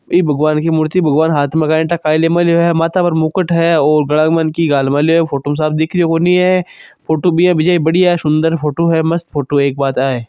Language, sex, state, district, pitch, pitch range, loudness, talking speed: Marwari, male, Rajasthan, Churu, 160 Hz, 150-170 Hz, -13 LUFS, 270 wpm